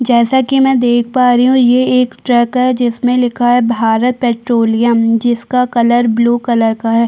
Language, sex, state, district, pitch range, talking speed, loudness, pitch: Hindi, female, Chhattisgarh, Kabirdham, 235-250 Hz, 185 wpm, -12 LUFS, 240 Hz